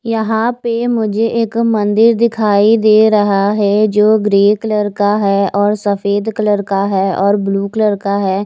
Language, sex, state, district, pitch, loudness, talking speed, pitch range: Hindi, female, Chandigarh, Chandigarh, 210 Hz, -13 LUFS, 170 wpm, 200-220 Hz